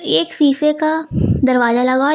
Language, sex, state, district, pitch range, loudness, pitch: Hindi, female, Uttar Pradesh, Lucknow, 245-300 Hz, -15 LUFS, 275 Hz